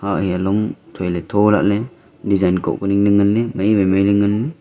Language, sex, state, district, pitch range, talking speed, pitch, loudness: Wancho, male, Arunachal Pradesh, Longding, 95-105 Hz, 260 wpm, 100 Hz, -17 LUFS